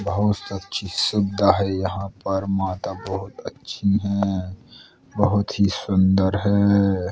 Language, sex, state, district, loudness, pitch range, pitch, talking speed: Bundeli, male, Uttar Pradesh, Jalaun, -22 LUFS, 95-100 Hz, 100 Hz, 125 wpm